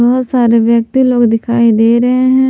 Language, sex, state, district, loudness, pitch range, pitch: Hindi, female, Jharkhand, Palamu, -10 LUFS, 230-255 Hz, 240 Hz